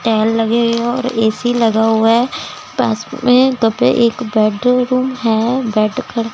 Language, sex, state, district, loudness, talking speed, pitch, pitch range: Hindi, female, Chandigarh, Chandigarh, -15 LUFS, 160 wpm, 235 Hz, 225-250 Hz